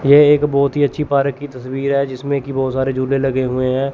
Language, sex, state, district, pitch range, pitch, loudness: Hindi, male, Chandigarh, Chandigarh, 130-140 Hz, 135 Hz, -17 LUFS